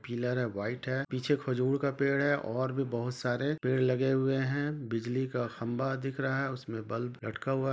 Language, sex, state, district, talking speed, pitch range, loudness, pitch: Hindi, male, Jharkhand, Sahebganj, 210 wpm, 120-135 Hz, -32 LUFS, 130 Hz